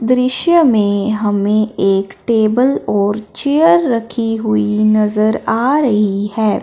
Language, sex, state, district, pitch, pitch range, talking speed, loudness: Hindi, male, Punjab, Fazilka, 215 Hz, 205-250 Hz, 120 wpm, -14 LUFS